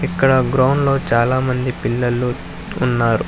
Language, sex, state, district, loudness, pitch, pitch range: Telugu, male, Telangana, Hyderabad, -17 LUFS, 125 Hz, 120-130 Hz